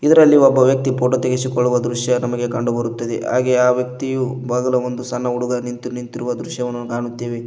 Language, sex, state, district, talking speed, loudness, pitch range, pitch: Kannada, male, Karnataka, Koppal, 160 wpm, -18 LUFS, 120-125 Hz, 125 Hz